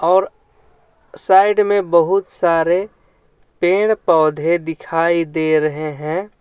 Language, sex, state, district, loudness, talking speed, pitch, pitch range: Hindi, male, Jharkhand, Ranchi, -16 LUFS, 105 wpm, 170 Hz, 160-190 Hz